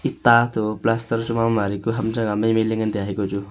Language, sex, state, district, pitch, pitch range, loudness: Wancho, male, Arunachal Pradesh, Longding, 110 Hz, 105-115 Hz, -21 LUFS